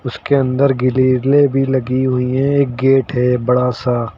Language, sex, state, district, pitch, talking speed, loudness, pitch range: Hindi, male, Uttar Pradesh, Lucknow, 130 Hz, 170 wpm, -15 LUFS, 125-135 Hz